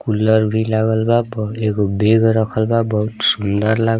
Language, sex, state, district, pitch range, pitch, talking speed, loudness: Bhojpuri, male, Bihar, East Champaran, 105-110 Hz, 110 Hz, 195 wpm, -16 LUFS